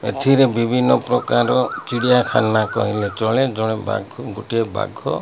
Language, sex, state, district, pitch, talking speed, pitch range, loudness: Odia, male, Odisha, Malkangiri, 115 Hz, 125 wpm, 110-125 Hz, -18 LUFS